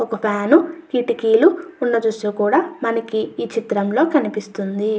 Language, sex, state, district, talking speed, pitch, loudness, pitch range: Telugu, female, Andhra Pradesh, Chittoor, 95 wpm, 230 Hz, -19 LUFS, 210-320 Hz